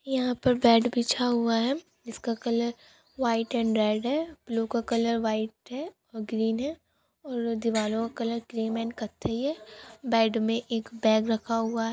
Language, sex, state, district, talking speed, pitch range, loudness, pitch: Hindi, female, Bihar, Sitamarhi, 170 wpm, 225-245 Hz, -28 LUFS, 230 Hz